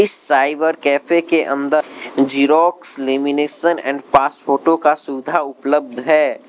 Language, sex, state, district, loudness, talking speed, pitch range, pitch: Hindi, male, Arunachal Pradesh, Lower Dibang Valley, -16 LUFS, 120 wpm, 140-160 Hz, 145 Hz